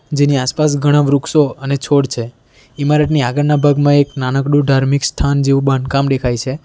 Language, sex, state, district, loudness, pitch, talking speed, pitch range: Gujarati, male, Gujarat, Valsad, -14 LUFS, 140 Hz, 160 wpm, 135-145 Hz